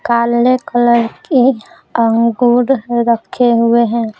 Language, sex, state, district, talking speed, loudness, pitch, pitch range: Hindi, female, Bihar, Patna, 85 wpm, -13 LUFS, 235 Hz, 235-245 Hz